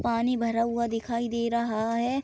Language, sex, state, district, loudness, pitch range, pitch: Hindi, female, Bihar, Araria, -27 LUFS, 230-235 Hz, 235 Hz